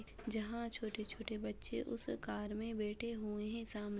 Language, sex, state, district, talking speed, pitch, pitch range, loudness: Hindi, female, Uttar Pradesh, Deoria, 165 wpm, 215 Hz, 210-225 Hz, -43 LUFS